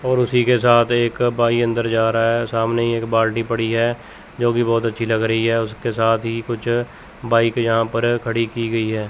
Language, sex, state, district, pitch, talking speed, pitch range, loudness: Hindi, male, Chandigarh, Chandigarh, 115 Hz, 210 wpm, 115-120 Hz, -19 LUFS